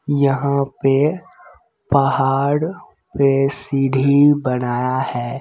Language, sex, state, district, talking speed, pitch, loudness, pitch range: Hindi, male, Bihar, Begusarai, 80 wpm, 140 Hz, -17 LUFS, 135-140 Hz